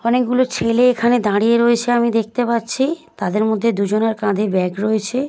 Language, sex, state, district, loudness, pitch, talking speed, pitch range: Bengali, female, West Bengal, Paschim Medinipur, -17 LUFS, 230 Hz, 160 wpm, 215-245 Hz